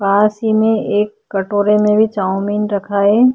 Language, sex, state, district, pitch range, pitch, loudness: Hindi, female, Uttarakhand, Tehri Garhwal, 200-215 Hz, 210 Hz, -15 LUFS